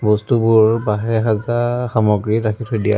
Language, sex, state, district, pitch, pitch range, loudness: Assamese, male, Assam, Sonitpur, 110 Hz, 105-115 Hz, -17 LUFS